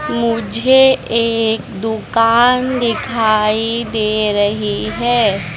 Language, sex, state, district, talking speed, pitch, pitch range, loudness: Hindi, female, Madhya Pradesh, Dhar, 75 wpm, 225 Hz, 215-235 Hz, -15 LUFS